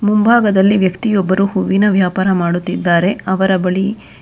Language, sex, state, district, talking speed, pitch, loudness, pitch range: Kannada, female, Karnataka, Bangalore, 115 wpm, 190 Hz, -14 LUFS, 185-205 Hz